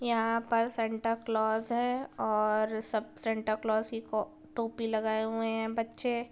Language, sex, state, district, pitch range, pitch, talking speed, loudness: Hindi, female, Bihar, Gopalganj, 220-230 Hz, 225 Hz, 150 wpm, -32 LUFS